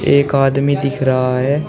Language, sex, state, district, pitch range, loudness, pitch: Hindi, male, Uttar Pradesh, Shamli, 130-140 Hz, -15 LUFS, 135 Hz